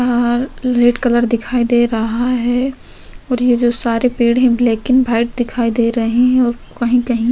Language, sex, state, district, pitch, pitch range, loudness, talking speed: Hindi, female, Uttar Pradesh, Hamirpur, 240 Hz, 235-250 Hz, -15 LUFS, 190 wpm